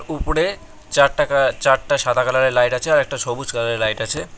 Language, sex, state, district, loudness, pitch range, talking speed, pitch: Bengali, male, West Bengal, Cooch Behar, -18 LUFS, 120-140 Hz, 180 wpm, 130 Hz